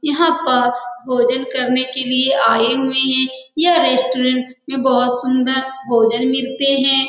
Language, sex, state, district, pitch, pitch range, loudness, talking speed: Hindi, female, Bihar, Saran, 255 Hz, 250-265 Hz, -15 LUFS, 145 wpm